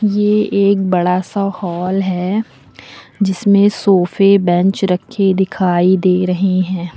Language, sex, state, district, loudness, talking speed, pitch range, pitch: Hindi, female, Uttar Pradesh, Lucknow, -14 LUFS, 120 wpm, 180-200 Hz, 190 Hz